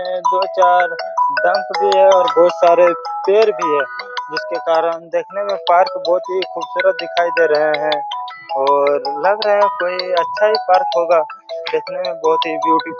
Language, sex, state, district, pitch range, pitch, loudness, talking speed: Hindi, male, Chhattisgarh, Raigarh, 165-245 Hz, 180 Hz, -16 LUFS, 175 wpm